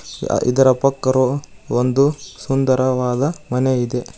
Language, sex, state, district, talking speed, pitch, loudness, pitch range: Kannada, male, Karnataka, Koppal, 100 wpm, 130 Hz, -18 LUFS, 125-135 Hz